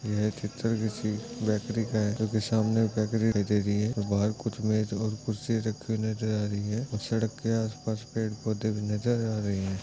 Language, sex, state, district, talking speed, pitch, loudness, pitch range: Hindi, male, Goa, North and South Goa, 185 wpm, 110 Hz, -29 LUFS, 105-110 Hz